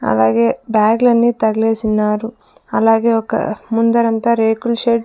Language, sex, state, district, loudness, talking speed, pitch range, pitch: Telugu, female, Andhra Pradesh, Sri Satya Sai, -15 LUFS, 105 wpm, 215-235 Hz, 225 Hz